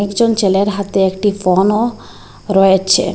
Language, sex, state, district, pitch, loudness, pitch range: Bengali, female, Assam, Hailakandi, 200 Hz, -14 LUFS, 190-205 Hz